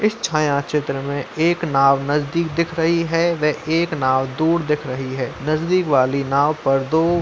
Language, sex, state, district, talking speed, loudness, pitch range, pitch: Hindi, male, Uttar Pradesh, Muzaffarnagar, 190 wpm, -19 LUFS, 140-165 Hz, 150 Hz